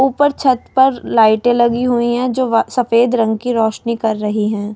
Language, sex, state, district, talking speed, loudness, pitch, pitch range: Hindi, female, Delhi, New Delhi, 190 wpm, -15 LUFS, 240 Hz, 220-250 Hz